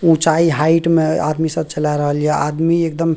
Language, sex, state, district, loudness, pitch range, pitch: Maithili, male, Bihar, Purnia, -16 LUFS, 150-165 Hz, 160 Hz